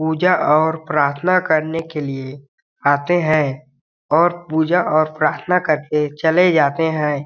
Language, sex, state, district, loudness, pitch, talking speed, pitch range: Hindi, male, Chhattisgarh, Balrampur, -17 LUFS, 155 Hz, 130 wpm, 150-170 Hz